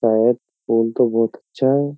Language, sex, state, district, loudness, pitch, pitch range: Hindi, male, Uttar Pradesh, Jyotiba Phule Nagar, -19 LUFS, 115 Hz, 115-130 Hz